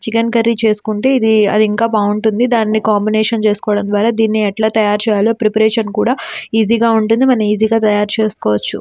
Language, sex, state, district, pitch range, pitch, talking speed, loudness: Telugu, female, Andhra Pradesh, Srikakulam, 210-225 Hz, 220 Hz, 165 wpm, -13 LUFS